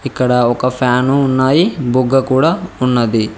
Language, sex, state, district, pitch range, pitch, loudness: Telugu, male, Telangana, Mahabubabad, 125-135 Hz, 130 Hz, -14 LUFS